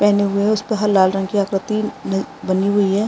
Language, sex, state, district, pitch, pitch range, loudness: Hindi, male, Uttarakhand, Tehri Garhwal, 200 Hz, 195-210 Hz, -18 LUFS